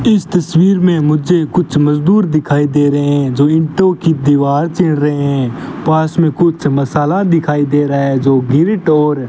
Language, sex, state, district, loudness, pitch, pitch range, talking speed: Hindi, male, Rajasthan, Bikaner, -12 LUFS, 150 Hz, 145-170 Hz, 185 wpm